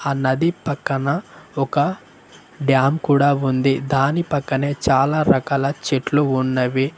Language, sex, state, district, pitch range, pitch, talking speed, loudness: Telugu, male, Telangana, Mahabubabad, 135-145 Hz, 140 Hz, 110 wpm, -19 LUFS